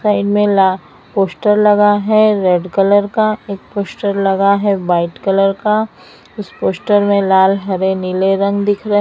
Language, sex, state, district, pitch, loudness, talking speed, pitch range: Hindi, male, Maharashtra, Mumbai Suburban, 200 Hz, -14 LUFS, 160 wpm, 190-205 Hz